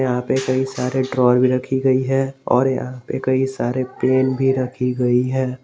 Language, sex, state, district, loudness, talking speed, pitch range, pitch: Hindi, male, Jharkhand, Garhwa, -19 LUFS, 200 wpm, 125-130 Hz, 130 Hz